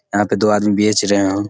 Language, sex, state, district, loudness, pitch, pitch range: Hindi, male, Bihar, Supaul, -15 LUFS, 105 Hz, 100-105 Hz